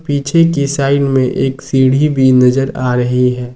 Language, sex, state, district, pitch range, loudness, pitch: Hindi, male, Jharkhand, Ranchi, 125-140 Hz, -12 LUFS, 135 Hz